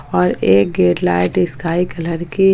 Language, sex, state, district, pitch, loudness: Hindi, female, Jharkhand, Palamu, 135 Hz, -16 LUFS